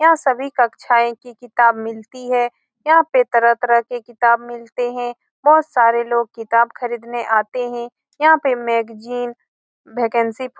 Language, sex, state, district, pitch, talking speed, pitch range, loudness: Hindi, female, Bihar, Saran, 240 Hz, 145 wpm, 235-250 Hz, -17 LUFS